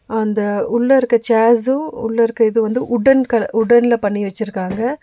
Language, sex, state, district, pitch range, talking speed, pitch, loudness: Tamil, female, Tamil Nadu, Nilgiris, 220-240 Hz, 165 wpm, 230 Hz, -16 LUFS